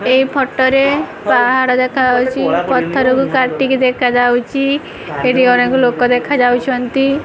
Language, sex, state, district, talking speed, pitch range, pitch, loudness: Odia, female, Odisha, Khordha, 105 wpm, 245-270 Hz, 255 Hz, -13 LUFS